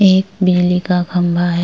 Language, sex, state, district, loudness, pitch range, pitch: Hindi, female, Uttar Pradesh, Jyotiba Phule Nagar, -15 LUFS, 175-185 Hz, 180 Hz